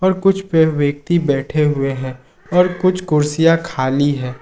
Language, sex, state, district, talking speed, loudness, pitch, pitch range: Hindi, male, Jharkhand, Ranchi, 150 wpm, -16 LUFS, 150 Hz, 140-180 Hz